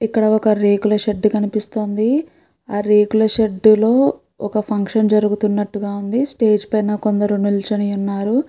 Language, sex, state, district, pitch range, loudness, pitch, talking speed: Telugu, female, Andhra Pradesh, Guntur, 205-220 Hz, -17 LUFS, 215 Hz, 125 wpm